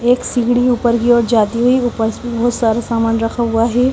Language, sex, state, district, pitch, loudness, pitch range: Hindi, female, Haryana, Charkhi Dadri, 235 Hz, -15 LUFS, 230-245 Hz